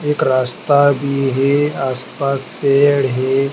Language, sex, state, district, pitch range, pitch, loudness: Hindi, male, Madhya Pradesh, Dhar, 135-145 Hz, 140 Hz, -16 LUFS